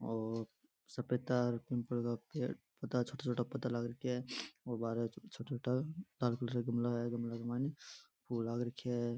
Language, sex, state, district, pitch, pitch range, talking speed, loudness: Rajasthani, male, Rajasthan, Nagaur, 120 Hz, 120-125 Hz, 195 wpm, -40 LUFS